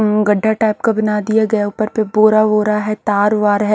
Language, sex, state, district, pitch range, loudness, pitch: Hindi, female, Haryana, Charkhi Dadri, 210-215 Hz, -15 LUFS, 215 Hz